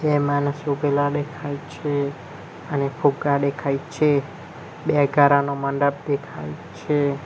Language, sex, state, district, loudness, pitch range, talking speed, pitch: Gujarati, male, Gujarat, Valsad, -22 LUFS, 140-145 Hz, 115 wpm, 145 Hz